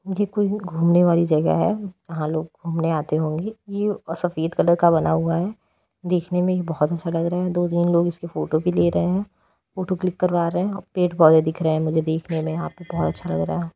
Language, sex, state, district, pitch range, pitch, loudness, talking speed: Hindi, female, Bihar, Vaishali, 160-180 Hz, 170 Hz, -22 LUFS, 240 wpm